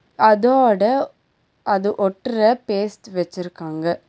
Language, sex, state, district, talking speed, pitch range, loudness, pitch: Tamil, female, Tamil Nadu, Nilgiris, 75 wpm, 180-220 Hz, -19 LUFS, 205 Hz